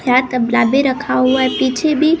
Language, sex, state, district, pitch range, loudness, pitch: Hindi, male, Maharashtra, Gondia, 255-275 Hz, -15 LUFS, 260 Hz